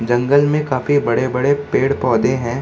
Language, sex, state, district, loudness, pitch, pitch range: Hindi, male, Bihar, Samastipur, -16 LUFS, 130 Hz, 125-145 Hz